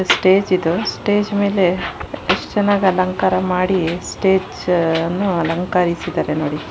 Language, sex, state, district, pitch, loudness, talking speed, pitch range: Kannada, female, Karnataka, Shimoga, 185 Hz, -18 LUFS, 105 wpm, 170-190 Hz